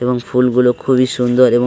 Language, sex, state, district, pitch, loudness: Bengali, male, West Bengal, Paschim Medinipur, 125 Hz, -14 LUFS